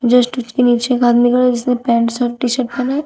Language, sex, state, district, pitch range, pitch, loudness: Hindi, female, Uttar Pradesh, Shamli, 240-250 Hz, 245 Hz, -15 LUFS